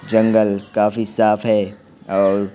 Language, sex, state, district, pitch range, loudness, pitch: Hindi, male, Bihar, Patna, 100-110 Hz, -17 LUFS, 105 Hz